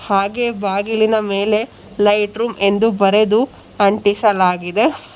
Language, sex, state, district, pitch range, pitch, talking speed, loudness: Kannada, female, Karnataka, Bangalore, 200-220 Hz, 210 Hz, 95 wpm, -16 LUFS